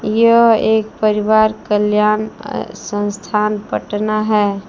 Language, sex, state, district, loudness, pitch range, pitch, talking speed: Hindi, female, Jharkhand, Palamu, -15 LUFS, 210-215 Hz, 215 Hz, 100 wpm